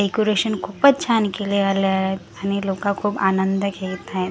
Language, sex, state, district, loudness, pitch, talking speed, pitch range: Marathi, female, Maharashtra, Gondia, -20 LUFS, 200 Hz, 155 wpm, 190-205 Hz